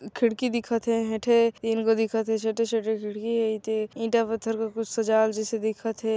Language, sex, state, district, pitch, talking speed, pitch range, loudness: Chhattisgarhi, female, Chhattisgarh, Sarguja, 225 Hz, 205 wpm, 220-230 Hz, -26 LUFS